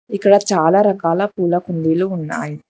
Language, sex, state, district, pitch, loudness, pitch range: Telugu, female, Telangana, Hyderabad, 185 Hz, -16 LUFS, 165-200 Hz